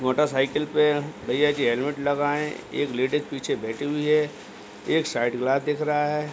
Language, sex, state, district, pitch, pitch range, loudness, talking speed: Hindi, male, Uttar Pradesh, Hamirpur, 145 Hz, 130-150 Hz, -24 LUFS, 150 wpm